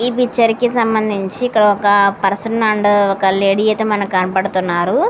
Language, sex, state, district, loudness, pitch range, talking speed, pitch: Telugu, female, Andhra Pradesh, Srikakulam, -15 LUFS, 195-225 Hz, 140 wpm, 205 Hz